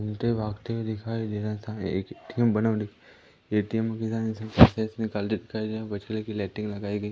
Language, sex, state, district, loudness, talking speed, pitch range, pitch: Hindi, male, Madhya Pradesh, Umaria, -28 LUFS, 185 wpm, 105-110 Hz, 110 Hz